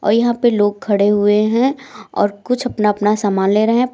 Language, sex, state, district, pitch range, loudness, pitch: Hindi, female, Uttar Pradesh, Lucknow, 205-240 Hz, -16 LUFS, 215 Hz